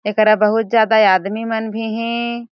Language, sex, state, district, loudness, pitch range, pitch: Chhattisgarhi, female, Chhattisgarh, Jashpur, -16 LUFS, 215-230 Hz, 220 Hz